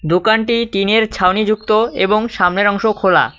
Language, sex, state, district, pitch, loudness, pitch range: Bengali, male, West Bengal, Cooch Behar, 215 Hz, -14 LUFS, 190-220 Hz